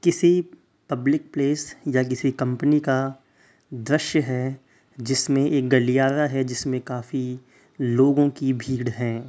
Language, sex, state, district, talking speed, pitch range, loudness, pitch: Hindi, male, Uttar Pradesh, Hamirpur, 125 wpm, 130-145 Hz, -23 LUFS, 135 Hz